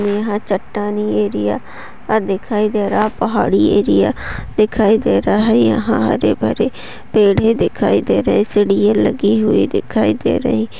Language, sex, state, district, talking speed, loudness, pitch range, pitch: Hindi, female, Uttarakhand, Tehri Garhwal, 155 wpm, -15 LUFS, 200-215 Hz, 210 Hz